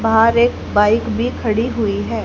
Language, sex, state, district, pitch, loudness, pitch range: Hindi, female, Haryana, Jhajjar, 225 Hz, -16 LUFS, 215-230 Hz